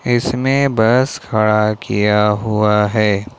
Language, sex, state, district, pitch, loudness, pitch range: Hindi, male, Jharkhand, Ranchi, 110 Hz, -15 LUFS, 105-125 Hz